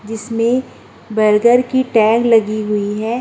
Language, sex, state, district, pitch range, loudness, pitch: Hindi, female, Uttar Pradesh, Muzaffarnagar, 215-240 Hz, -15 LUFS, 225 Hz